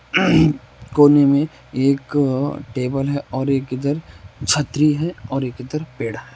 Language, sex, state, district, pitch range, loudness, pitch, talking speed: Hindi, male, Rajasthan, Nagaur, 130-145 Hz, -19 LUFS, 140 Hz, 140 wpm